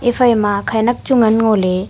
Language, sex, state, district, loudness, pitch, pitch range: Wancho, female, Arunachal Pradesh, Longding, -14 LUFS, 220 Hz, 205-240 Hz